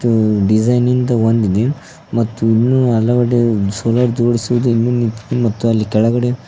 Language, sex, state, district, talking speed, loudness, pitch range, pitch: Kannada, male, Karnataka, Koppal, 130 wpm, -15 LUFS, 110-120 Hz, 115 Hz